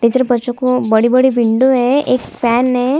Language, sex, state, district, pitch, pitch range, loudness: Hindi, female, Chhattisgarh, Kabirdham, 250 Hz, 240-255 Hz, -13 LUFS